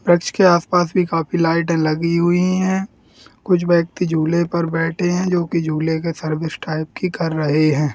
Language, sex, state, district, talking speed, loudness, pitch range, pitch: Hindi, male, Bihar, Gaya, 205 wpm, -18 LUFS, 160-175 Hz, 170 Hz